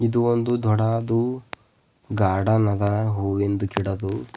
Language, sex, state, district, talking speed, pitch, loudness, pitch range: Kannada, male, Karnataka, Bidar, 95 wpm, 110 Hz, -23 LUFS, 100-115 Hz